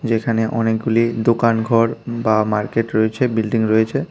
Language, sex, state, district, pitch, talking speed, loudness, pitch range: Bengali, female, Tripura, West Tripura, 115 Hz, 115 wpm, -18 LUFS, 110-115 Hz